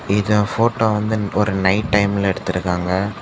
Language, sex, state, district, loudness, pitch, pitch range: Tamil, male, Tamil Nadu, Kanyakumari, -18 LUFS, 100 Hz, 95-105 Hz